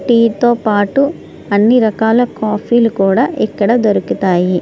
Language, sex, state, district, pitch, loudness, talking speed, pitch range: Telugu, female, Andhra Pradesh, Srikakulam, 220 Hz, -13 LUFS, 145 wpm, 205-240 Hz